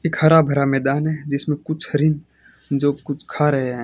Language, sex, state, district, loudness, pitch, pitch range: Hindi, male, Rajasthan, Bikaner, -20 LUFS, 150 Hz, 140-155 Hz